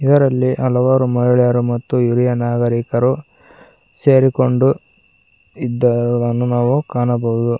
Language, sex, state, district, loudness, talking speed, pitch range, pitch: Kannada, male, Karnataka, Koppal, -16 LUFS, 80 wpm, 120-130 Hz, 125 Hz